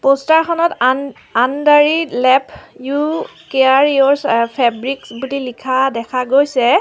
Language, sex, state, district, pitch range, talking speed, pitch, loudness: Assamese, female, Assam, Sonitpur, 255-285 Hz, 115 wpm, 270 Hz, -15 LUFS